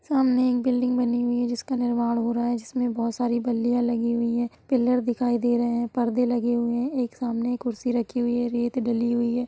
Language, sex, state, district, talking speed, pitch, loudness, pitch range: Hindi, female, Bihar, Sitamarhi, 235 wpm, 240 Hz, -25 LUFS, 235-245 Hz